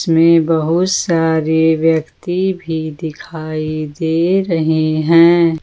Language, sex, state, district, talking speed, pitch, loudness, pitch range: Hindi, female, Jharkhand, Ranchi, 95 wpm, 165 Hz, -14 LUFS, 160-170 Hz